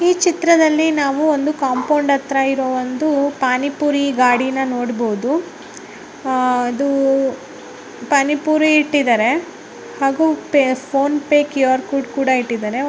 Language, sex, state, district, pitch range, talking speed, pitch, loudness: Kannada, female, Karnataka, Mysore, 260-295 Hz, 120 wpm, 275 Hz, -17 LUFS